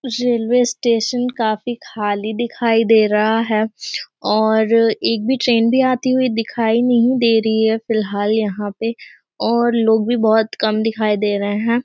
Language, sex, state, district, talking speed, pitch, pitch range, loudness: Hindi, female, Uttar Pradesh, Deoria, 160 wpm, 225 Hz, 215-240 Hz, -17 LUFS